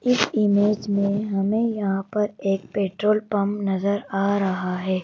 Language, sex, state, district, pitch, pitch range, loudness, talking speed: Hindi, female, Madhya Pradesh, Bhopal, 200 Hz, 195-210 Hz, -23 LUFS, 155 wpm